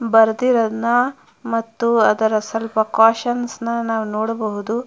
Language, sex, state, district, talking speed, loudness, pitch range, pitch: Kannada, female, Karnataka, Mysore, 85 wpm, -18 LUFS, 220-235 Hz, 225 Hz